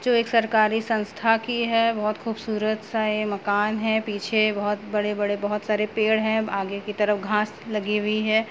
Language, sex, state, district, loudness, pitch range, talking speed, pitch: Hindi, female, Uttar Pradesh, Etah, -24 LUFS, 210-220 Hz, 175 wpm, 215 Hz